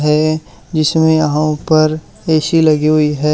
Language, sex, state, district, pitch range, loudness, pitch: Hindi, male, Haryana, Charkhi Dadri, 150-160 Hz, -14 LUFS, 155 Hz